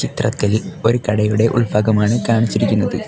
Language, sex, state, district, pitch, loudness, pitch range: Malayalam, male, Kerala, Kollam, 110 Hz, -17 LUFS, 105-115 Hz